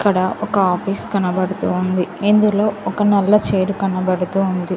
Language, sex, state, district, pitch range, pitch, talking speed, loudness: Telugu, female, Telangana, Mahabubabad, 185-205 Hz, 195 Hz, 140 wpm, -17 LUFS